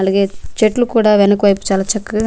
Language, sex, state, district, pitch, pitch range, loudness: Telugu, female, Andhra Pradesh, Manyam, 205 Hz, 195-215 Hz, -14 LUFS